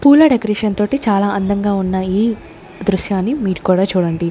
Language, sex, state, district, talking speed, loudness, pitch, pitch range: Telugu, female, Andhra Pradesh, Sri Satya Sai, 140 wpm, -16 LUFS, 200 Hz, 190-215 Hz